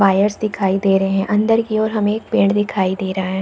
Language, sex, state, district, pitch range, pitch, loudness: Hindi, female, Chhattisgarh, Balrampur, 195-215 Hz, 200 Hz, -17 LUFS